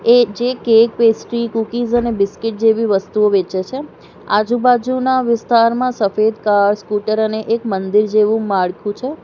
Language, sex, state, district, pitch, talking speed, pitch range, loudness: Gujarati, female, Gujarat, Valsad, 225 Hz, 145 wpm, 210-240 Hz, -16 LUFS